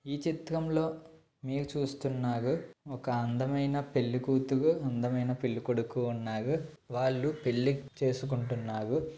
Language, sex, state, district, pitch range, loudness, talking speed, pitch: Telugu, male, Andhra Pradesh, Visakhapatnam, 125-150 Hz, -32 LUFS, 90 wpm, 135 Hz